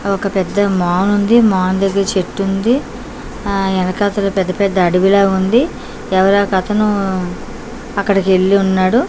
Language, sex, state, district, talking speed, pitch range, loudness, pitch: Telugu, female, Andhra Pradesh, Manyam, 100 wpm, 190-205 Hz, -14 LUFS, 195 Hz